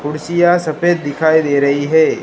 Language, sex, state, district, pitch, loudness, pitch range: Hindi, female, Gujarat, Gandhinagar, 155 Hz, -14 LUFS, 145-170 Hz